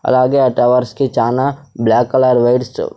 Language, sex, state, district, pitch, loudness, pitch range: Telugu, male, Andhra Pradesh, Sri Satya Sai, 125 Hz, -14 LUFS, 120-130 Hz